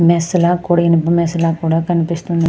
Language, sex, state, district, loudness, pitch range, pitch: Telugu, female, Andhra Pradesh, Krishna, -15 LUFS, 165-170 Hz, 170 Hz